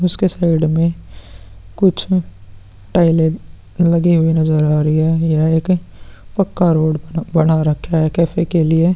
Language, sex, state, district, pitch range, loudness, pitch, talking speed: Hindi, male, Bihar, Vaishali, 150-170 Hz, -15 LUFS, 160 Hz, 140 wpm